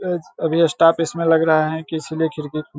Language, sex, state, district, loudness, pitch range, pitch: Hindi, male, Bihar, Saharsa, -19 LUFS, 155-165 Hz, 160 Hz